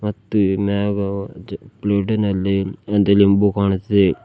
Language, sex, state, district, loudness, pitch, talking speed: Kannada, male, Karnataka, Bidar, -18 LUFS, 100 Hz, 100 wpm